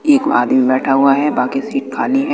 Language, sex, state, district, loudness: Hindi, male, Bihar, West Champaran, -14 LUFS